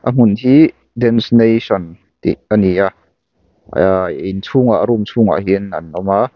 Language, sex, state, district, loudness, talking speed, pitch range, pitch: Mizo, male, Mizoram, Aizawl, -14 LUFS, 150 wpm, 95-120 Hz, 105 Hz